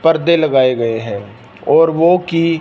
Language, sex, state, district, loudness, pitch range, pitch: Hindi, male, Punjab, Fazilka, -13 LUFS, 115-165 Hz, 160 Hz